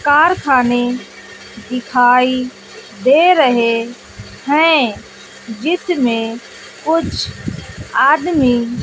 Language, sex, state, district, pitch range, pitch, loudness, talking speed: Hindi, female, Bihar, West Champaran, 235-300 Hz, 250 Hz, -14 LUFS, 60 wpm